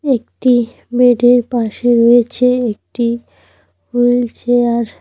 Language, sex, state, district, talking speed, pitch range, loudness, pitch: Bengali, female, West Bengal, Cooch Behar, 95 wpm, 235-245 Hz, -14 LUFS, 245 Hz